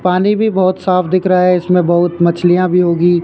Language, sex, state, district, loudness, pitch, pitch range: Hindi, male, Rajasthan, Jaipur, -12 LUFS, 180 Hz, 175-185 Hz